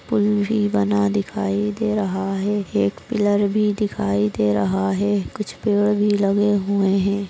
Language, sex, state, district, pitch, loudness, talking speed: Hindi, female, Maharashtra, Nagpur, 200 Hz, -20 LUFS, 165 wpm